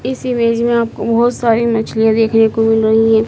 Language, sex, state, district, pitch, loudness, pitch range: Hindi, female, Madhya Pradesh, Dhar, 225 Hz, -13 LUFS, 225-235 Hz